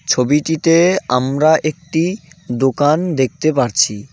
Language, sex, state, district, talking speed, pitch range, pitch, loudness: Bengali, male, West Bengal, Cooch Behar, 100 wpm, 130-160 Hz, 155 Hz, -15 LUFS